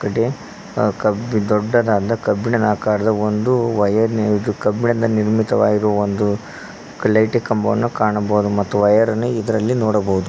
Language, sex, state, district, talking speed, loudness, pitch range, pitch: Kannada, male, Karnataka, Koppal, 120 wpm, -18 LUFS, 105-115 Hz, 105 Hz